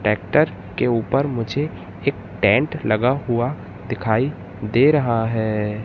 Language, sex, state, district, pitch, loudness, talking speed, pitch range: Hindi, male, Madhya Pradesh, Katni, 115 Hz, -20 LUFS, 125 wpm, 105-135 Hz